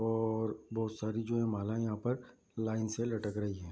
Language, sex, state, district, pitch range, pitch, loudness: Hindi, male, Bihar, Bhagalpur, 110-115 Hz, 110 Hz, -36 LUFS